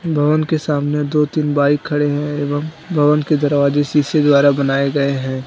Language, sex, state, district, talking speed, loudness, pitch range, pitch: Hindi, male, Jharkhand, Deoghar, 185 wpm, -16 LUFS, 145-150 Hz, 145 Hz